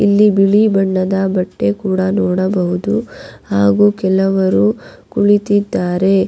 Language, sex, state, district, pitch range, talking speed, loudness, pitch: Kannada, female, Karnataka, Raichur, 180-205 Hz, 50 wpm, -14 LUFS, 190 Hz